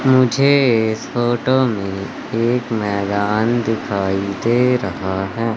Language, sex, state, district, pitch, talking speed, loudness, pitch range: Hindi, male, Madhya Pradesh, Katni, 115 Hz, 95 wpm, -18 LUFS, 100-125 Hz